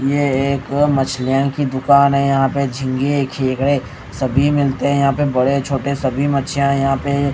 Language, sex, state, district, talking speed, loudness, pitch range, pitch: Hindi, male, Odisha, Khordha, 180 wpm, -17 LUFS, 135-140 Hz, 140 Hz